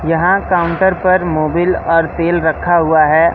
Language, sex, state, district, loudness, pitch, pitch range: Hindi, male, Madhya Pradesh, Katni, -13 LUFS, 170 Hz, 160-175 Hz